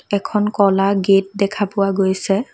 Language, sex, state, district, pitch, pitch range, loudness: Assamese, female, Assam, Kamrup Metropolitan, 200 Hz, 195-205 Hz, -17 LUFS